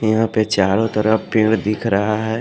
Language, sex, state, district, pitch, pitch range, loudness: Hindi, male, Haryana, Jhajjar, 110 Hz, 105-110 Hz, -17 LUFS